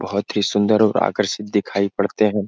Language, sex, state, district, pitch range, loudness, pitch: Hindi, male, Bihar, Jahanabad, 100-105 Hz, -19 LUFS, 105 Hz